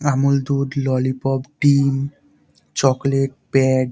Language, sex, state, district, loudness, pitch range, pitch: Bengali, male, West Bengal, Dakshin Dinajpur, -19 LUFS, 130-140 Hz, 135 Hz